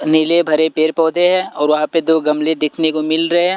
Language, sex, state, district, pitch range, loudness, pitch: Hindi, male, Punjab, Pathankot, 155-165 Hz, -15 LUFS, 160 Hz